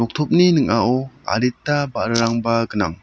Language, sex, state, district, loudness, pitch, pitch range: Garo, male, Meghalaya, South Garo Hills, -19 LUFS, 115 Hz, 115-145 Hz